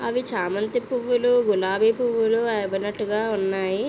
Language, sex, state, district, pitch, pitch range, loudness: Telugu, female, Andhra Pradesh, Visakhapatnam, 220 Hz, 200-240 Hz, -23 LUFS